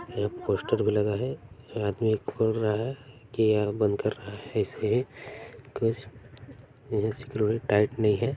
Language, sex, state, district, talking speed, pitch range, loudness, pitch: Hindi, male, Chhattisgarh, Balrampur, 155 wpm, 105-120 Hz, -28 LUFS, 110 Hz